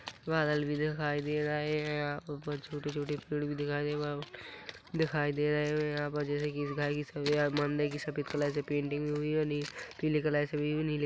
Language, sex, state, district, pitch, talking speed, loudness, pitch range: Hindi, male, Chhattisgarh, Korba, 150 Hz, 170 wpm, -33 LUFS, 145-150 Hz